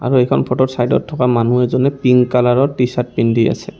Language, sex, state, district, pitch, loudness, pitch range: Assamese, male, Assam, Kamrup Metropolitan, 125 Hz, -15 LUFS, 125-130 Hz